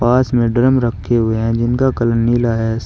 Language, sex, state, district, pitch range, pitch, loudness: Hindi, male, Uttar Pradesh, Shamli, 115-120 Hz, 120 Hz, -15 LUFS